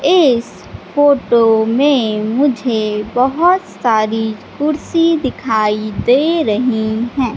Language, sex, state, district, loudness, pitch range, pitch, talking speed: Hindi, female, Madhya Pradesh, Katni, -14 LUFS, 220-285 Hz, 240 Hz, 90 wpm